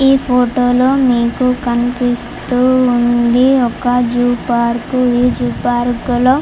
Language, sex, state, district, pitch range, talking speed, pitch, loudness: Telugu, female, Andhra Pradesh, Chittoor, 240-255 Hz, 130 wpm, 245 Hz, -13 LUFS